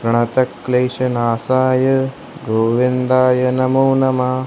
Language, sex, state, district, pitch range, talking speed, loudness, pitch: Hindi, male, Maharashtra, Gondia, 125-130 Hz, 65 wpm, -16 LUFS, 130 Hz